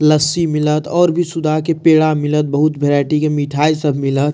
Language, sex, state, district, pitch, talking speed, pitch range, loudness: Maithili, male, Bihar, Madhepura, 150 Hz, 195 wpm, 145-155 Hz, -15 LUFS